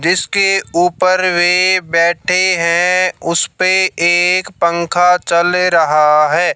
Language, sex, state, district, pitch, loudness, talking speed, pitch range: Hindi, male, Haryana, Jhajjar, 175 Hz, -12 LUFS, 100 wpm, 170-185 Hz